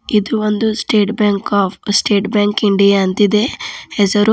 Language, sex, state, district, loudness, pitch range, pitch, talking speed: Kannada, female, Karnataka, Bidar, -15 LUFS, 200-210 Hz, 205 Hz, 140 wpm